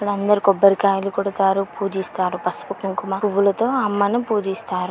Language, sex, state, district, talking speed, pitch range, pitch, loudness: Telugu, female, Andhra Pradesh, Srikakulam, 110 wpm, 195-205 Hz, 195 Hz, -20 LUFS